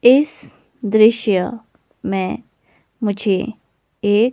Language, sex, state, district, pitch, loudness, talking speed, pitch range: Hindi, female, Himachal Pradesh, Shimla, 220 Hz, -18 LUFS, 70 wpm, 200-240 Hz